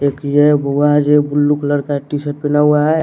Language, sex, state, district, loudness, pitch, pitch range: Hindi, male, Bihar, West Champaran, -14 LUFS, 145 Hz, 145-150 Hz